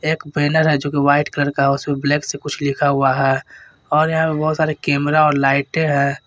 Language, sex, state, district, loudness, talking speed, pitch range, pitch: Hindi, male, Jharkhand, Garhwa, -17 LUFS, 240 wpm, 140-155 Hz, 145 Hz